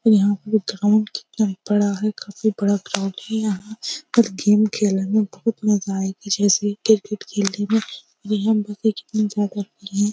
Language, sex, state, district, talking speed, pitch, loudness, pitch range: Hindi, female, Uttar Pradesh, Jyotiba Phule Nagar, 165 wpm, 210 Hz, -21 LUFS, 200-215 Hz